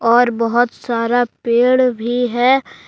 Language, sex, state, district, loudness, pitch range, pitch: Hindi, male, Jharkhand, Deoghar, -16 LUFS, 235-245 Hz, 240 Hz